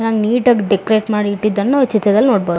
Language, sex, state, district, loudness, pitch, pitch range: Kannada, female, Karnataka, Bellary, -14 LUFS, 215 Hz, 205-230 Hz